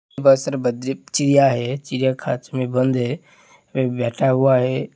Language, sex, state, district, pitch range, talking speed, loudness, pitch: Hindi, male, Uttar Pradesh, Hamirpur, 125-135 Hz, 135 wpm, -19 LUFS, 130 Hz